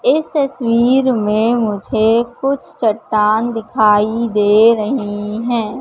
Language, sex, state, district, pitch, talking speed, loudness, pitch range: Hindi, female, Madhya Pradesh, Katni, 225 Hz, 105 wpm, -15 LUFS, 215-245 Hz